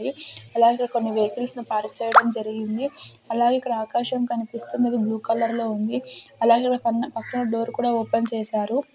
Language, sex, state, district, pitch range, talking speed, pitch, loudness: Telugu, female, Andhra Pradesh, Sri Satya Sai, 220-245 Hz, 155 wpm, 230 Hz, -23 LUFS